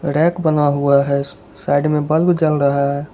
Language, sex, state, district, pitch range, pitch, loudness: Hindi, male, Gujarat, Valsad, 140-155 Hz, 145 Hz, -16 LUFS